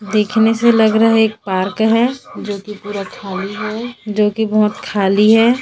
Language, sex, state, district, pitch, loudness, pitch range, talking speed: Hindi, female, Chhattisgarh, Raipur, 215 Hz, -15 LUFS, 205-225 Hz, 190 wpm